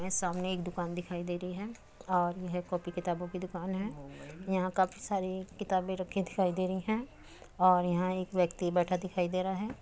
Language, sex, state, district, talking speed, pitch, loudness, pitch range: Hindi, female, Uttar Pradesh, Muzaffarnagar, 200 wpm, 185 Hz, -33 LUFS, 180-190 Hz